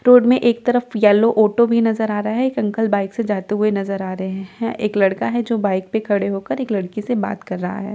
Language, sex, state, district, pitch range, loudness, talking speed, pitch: Hindi, female, Delhi, New Delhi, 200-230 Hz, -18 LUFS, 265 wpm, 210 Hz